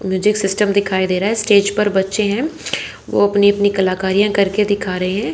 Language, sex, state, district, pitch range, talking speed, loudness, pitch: Hindi, female, Haryana, Charkhi Dadri, 190-210 Hz, 200 wpm, -16 LUFS, 200 Hz